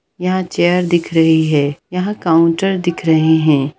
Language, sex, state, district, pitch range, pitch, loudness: Hindi, female, Bihar, Gaya, 160-180 Hz, 165 Hz, -14 LUFS